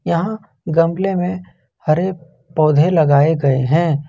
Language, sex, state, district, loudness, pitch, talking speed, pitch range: Hindi, male, Jharkhand, Ranchi, -16 LUFS, 165 Hz, 115 wpm, 150-180 Hz